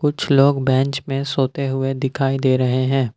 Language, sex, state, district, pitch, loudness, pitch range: Hindi, male, Assam, Kamrup Metropolitan, 135 Hz, -19 LUFS, 130-140 Hz